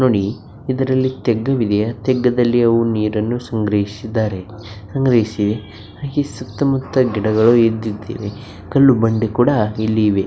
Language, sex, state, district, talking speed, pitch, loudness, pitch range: Kannada, male, Karnataka, Bijapur, 110 wpm, 115 Hz, -17 LUFS, 105-125 Hz